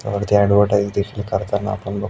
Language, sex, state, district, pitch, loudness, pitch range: Marathi, male, Maharashtra, Aurangabad, 100 Hz, -19 LUFS, 100-105 Hz